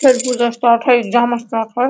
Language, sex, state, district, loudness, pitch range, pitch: Hindi, female, Bihar, Araria, -15 LUFS, 235-250 Hz, 240 Hz